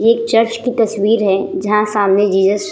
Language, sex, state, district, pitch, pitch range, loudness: Hindi, female, Bihar, Vaishali, 210 Hz, 200-225 Hz, -14 LUFS